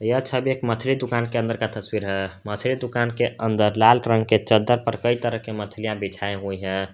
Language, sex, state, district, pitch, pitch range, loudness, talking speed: Hindi, male, Jharkhand, Garhwa, 115 Hz, 105-120 Hz, -22 LUFS, 225 wpm